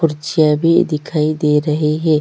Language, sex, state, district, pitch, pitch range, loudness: Hindi, female, Chhattisgarh, Sukma, 155 Hz, 150-160 Hz, -15 LUFS